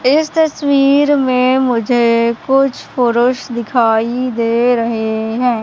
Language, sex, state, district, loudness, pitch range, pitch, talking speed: Hindi, male, Madhya Pradesh, Katni, -14 LUFS, 230-270 Hz, 245 Hz, 105 wpm